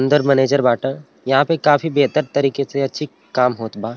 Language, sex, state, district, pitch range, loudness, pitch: Bhojpuri, male, Uttar Pradesh, Ghazipur, 130-145 Hz, -17 LUFS, 135 Hz